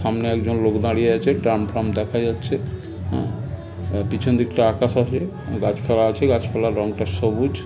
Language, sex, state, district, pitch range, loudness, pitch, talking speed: Bengali, male, West Bengal, North 24 Parganas, 105-115 Hz, -21 LUFS, 110 Hz, 180 wpm